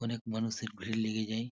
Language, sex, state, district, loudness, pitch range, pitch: Bengali, male, West Bengal, Purulia, -35 LUFS, 110-115 Hz, 110 Hz